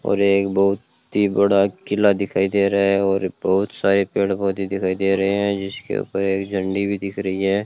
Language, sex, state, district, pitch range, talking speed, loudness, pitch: Hindi, male, Rajasthan, Bikaner, 95-100 Hz, 210 wpm, -19 LUFS, 100 Hz